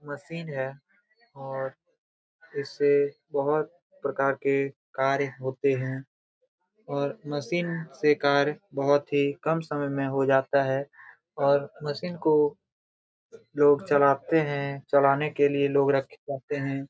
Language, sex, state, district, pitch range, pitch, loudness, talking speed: Hindi, male, Jharkhand, Jamtara, 140-155 Hz, 140 Hz, -26 LUFS, 125 wpm